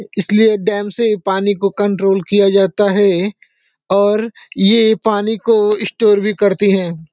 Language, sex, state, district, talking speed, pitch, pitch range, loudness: Hindi, male, Uttar Pradesh, Deoria, 145 wpm, 205 Hz, 195-215 Hz, -14 LUFS